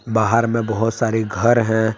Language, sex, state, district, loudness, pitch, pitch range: Hindi, male, Jharkhand, Palamu, -18 LUFS, 110 Hz, 110-115 Hz